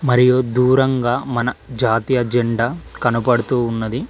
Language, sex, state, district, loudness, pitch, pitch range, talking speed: Telugu, male, Telangana, Mahabubabad, -18 LUFS, 125 Hz, 120-130 Hz, 100 wpm